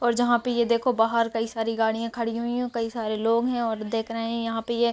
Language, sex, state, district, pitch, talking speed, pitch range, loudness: Hindi, female, Bihar, Sitamarhi, 230 Hz, 305 wpm, 225-235 Hz, -25 LUFS